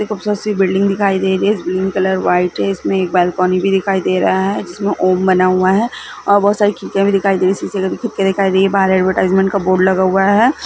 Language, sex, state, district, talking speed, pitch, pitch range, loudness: Hindi, female, Bihar, Gaya, 275 wpm, 190 Hz, 185-200 Hz, -14 LUFS